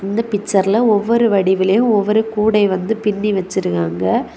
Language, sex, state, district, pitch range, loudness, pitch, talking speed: Tamil, female, Tamil Nadu, Kanyakumari, 190-220 Hz, -16 LUFS, 205 Hz, 110 wpm